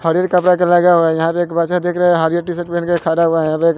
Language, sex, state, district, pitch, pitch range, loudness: Hindi, male, Bihar, West Champaran, 170 Hz, 165-175 Hz, -15 LUFS